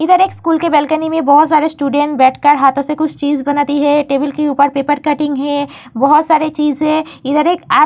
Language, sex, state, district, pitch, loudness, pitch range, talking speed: Hindi, female, Uttar Pradesh, Varanasi, 295 Hz, -13 LUFS, 285-310 Hz, 220 wpm